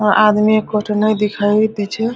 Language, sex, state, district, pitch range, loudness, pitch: Hindi, female, Bihar, Araria, 210-215 Hz, -15 LUFS, 210 Hz